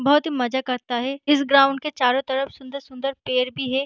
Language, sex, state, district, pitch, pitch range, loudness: Hindi, female, Bihar, Begusarai, 270 Hz, 255-275 Hz, -22 LUFS